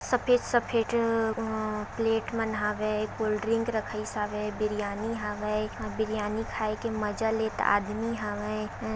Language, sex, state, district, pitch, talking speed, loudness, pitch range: Chhattisgarhi, female, Chhattisgarh, Raigarh, 215 Hz, 135 wpm, -29 LUFS, 210-225 Hz